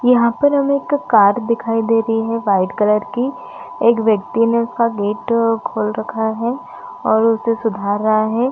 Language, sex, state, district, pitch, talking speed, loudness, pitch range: Hindi, female, Chhattisgarh, Bastar, 225 Hz, 185 wpm, -17 LUFS, 215-235 Hz